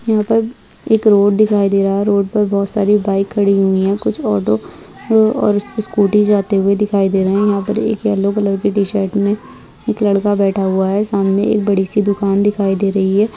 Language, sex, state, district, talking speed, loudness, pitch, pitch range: Hindi, female, Bihar, Purnia, 215 wpm, -15 LUFS, 200 Hz, 195-210 Hz